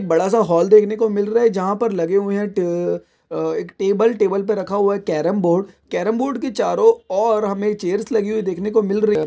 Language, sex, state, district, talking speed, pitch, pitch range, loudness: Hindi, male, Maharashtra, Sindhudurg, 240 wpm, 205 Hz, 190-220 Hz, -18 LUFS